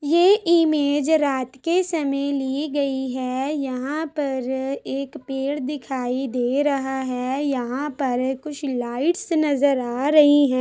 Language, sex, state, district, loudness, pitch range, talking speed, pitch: Hindi, female, Chhattisgarh, Sukma, -22 LUFS, 265-295 Hz, 135 wpm, 275 Hz